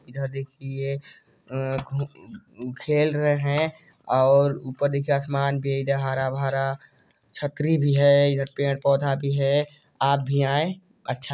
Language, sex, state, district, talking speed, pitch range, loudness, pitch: Hindi, male, Chhattisgarh, Sarguja, 140 wpm, 135-145 Hz, -24 LUFS, 140 Hz